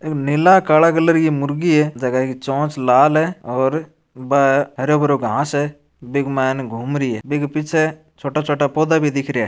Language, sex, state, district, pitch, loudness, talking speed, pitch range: Marwari, male, Rajasthan, Churu, 145 Hz, -17 LUFS, 185 wpm, 135-155 Hz